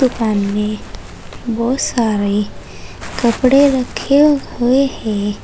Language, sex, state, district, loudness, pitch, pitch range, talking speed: Hindi, female, Uttar Pradesh, Saharanpur, -15 LUFS, 230 Hz, 205-260 Hz, 90 wpm